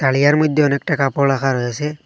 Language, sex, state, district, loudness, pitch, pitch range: Bengali, male, Assam, Hailakandi, -17 LUFS, 140 Hz, 135-150 Hz